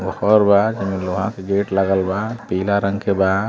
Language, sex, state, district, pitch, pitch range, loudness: Bhojpuri, male, Uttar Pradesh, Deoria, 100 Hz, 95-100 Hz, -18 LUFS